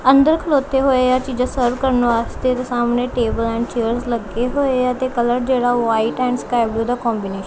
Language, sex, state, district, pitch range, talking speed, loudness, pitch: Punjabi, female, Punjab, Kapurthala, 235-255 Hz, 210 wpm, -18 LUFS, 245 Hz